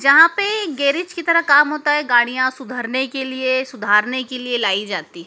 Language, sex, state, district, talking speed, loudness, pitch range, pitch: Hindi, female, Madhya Pradesh, Dhar, 195 wpm, -17 LUFS, 245-295 Hz, 260 Hz